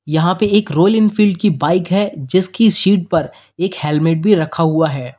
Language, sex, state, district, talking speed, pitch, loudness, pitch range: Hindi, male, Uttar Pradesh, Lalitpur, 195 wpm, 180 Hz, -15 LUFS, 160-200 Hz